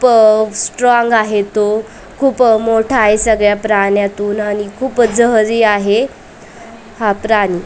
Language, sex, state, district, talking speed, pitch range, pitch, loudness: Marathi, female, Maharashtra, Aurangabad, 115 wpm, 205-230 Hz, 220 Hz, -13 LUFS